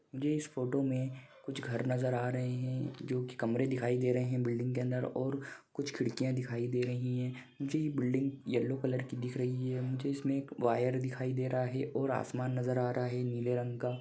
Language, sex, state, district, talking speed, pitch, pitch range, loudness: Hindi, male, Maharashtra, Pune, 230 wpm, 125 Hz, 125-130 Hz, -35 LUFS